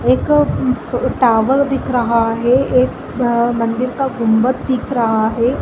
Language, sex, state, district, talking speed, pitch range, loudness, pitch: Hindi, female, Chhattisgarh, Balrampur, 160 wpm, 225-255 Hz, -15 LUFS, 240 Hz